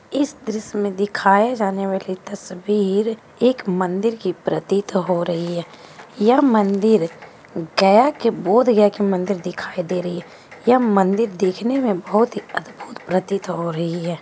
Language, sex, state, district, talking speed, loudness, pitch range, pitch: Hindi, female, Bihar, Gaya, 150 wpm, -19 LUFS, 185-220 Hz, 200 Hz